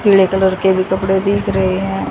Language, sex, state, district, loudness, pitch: Hindi, female, Haryana, Jhajjar, -15 LUFS, 190 Hz